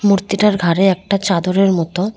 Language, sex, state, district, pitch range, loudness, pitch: Bengali, female, West Bengal, Cooch Behar, 180-200 Hz, -15 LUFS, 195 Hz